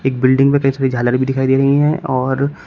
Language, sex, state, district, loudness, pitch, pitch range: Hindi, male, Uttar Pradesh, Shamli, -15 LUFS, 135 Hz, 130-140 Hz